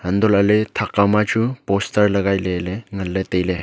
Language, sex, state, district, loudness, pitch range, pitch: Wancho, male, Arunachal Pradesh, Longding, -19 LUFS, 95-105 Hz, 100 Hz